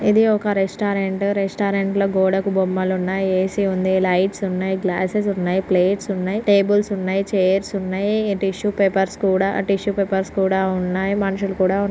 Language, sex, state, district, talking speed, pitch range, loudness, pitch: Telugu, female, Andhra Pradesh, Srikakulam, 155 wpm, 190-200 Hz, -20 LUFS, 195 Hz